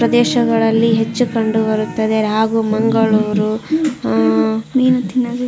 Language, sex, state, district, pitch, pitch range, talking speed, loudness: Kannada, female, Karnataka, Raichur, 225 Hz, 215-240 Hz, 110 wpm, -15 LUFS